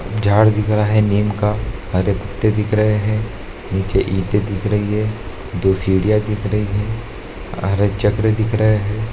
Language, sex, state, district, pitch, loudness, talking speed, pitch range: Hindi, male, Bihar, Purnia, 105 Hz, -18 LUFS, 170 wpm, 100-110 Hz